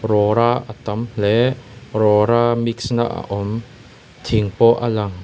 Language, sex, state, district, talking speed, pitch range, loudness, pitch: Mizo, male, Mizoram, Aizawl, 150 wpm, 105-120 Hz, -18 LUFS, 115 Hz